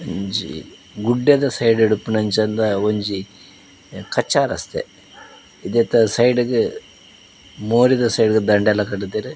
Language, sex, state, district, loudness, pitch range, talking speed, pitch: Tulu, male, Karnataka, Dakshina Kannada, -18 LUFS, 100-120 Hz, 105 wpm, 110 Hz